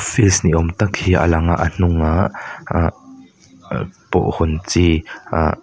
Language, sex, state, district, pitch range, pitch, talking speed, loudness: Mizo, male, Mizoram, Aizawl, 80-100 Hz, 85 Hz, 160 wpm, -17 LUFS